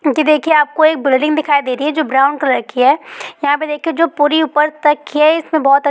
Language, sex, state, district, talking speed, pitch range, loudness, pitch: Hindi, female, Bihar, East Champaran, 265 wpm, 285-310 Hz, -14 LUFS, 295 Hz